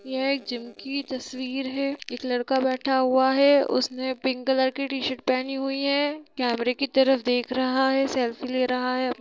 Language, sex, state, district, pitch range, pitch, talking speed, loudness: Hindi, female, Bihar, Sitamarhi, 255-270 Hz, 260 Hz, 190 wpm, -25 LUFS